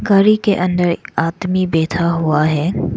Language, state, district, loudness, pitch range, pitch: Hindi, Arunachal Pradesh, Lower Dibang Valley, -16 LUFS, 165-185 Hz, 175 Hz